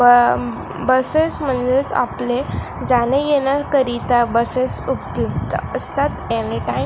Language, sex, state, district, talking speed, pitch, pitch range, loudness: Marathi, female, Maharashtra, Gondia, 105 wpm, 255 Hz, 245-275 Hz, -18 LUFS